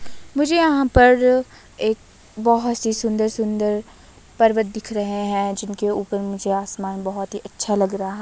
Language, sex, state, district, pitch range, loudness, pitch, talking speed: Hindi, female, Himachal Pradesh, Shimla, 200-230 Hz, -20 LUFS, 210 Hz, 155 wpm